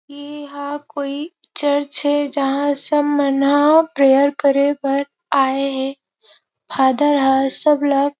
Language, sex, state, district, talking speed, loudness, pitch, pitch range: Chhattisgarhi, female, Chhattisgarh, Rajnandgaon, 125 wpm, -17 LUFS, 285 Hz, 275-290 Hz